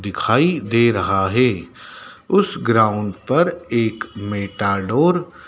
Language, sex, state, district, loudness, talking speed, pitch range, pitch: Hindi, male, Madhya Pradesh, Dhar, -18 LUFS, 110 wpm, 100-135 Hz, 115 Hz